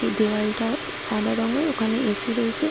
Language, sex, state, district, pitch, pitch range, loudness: Bengali, female, West Bengal, Jalpaiguri, 230 Hz, 215-250 Hz, -24 LUFS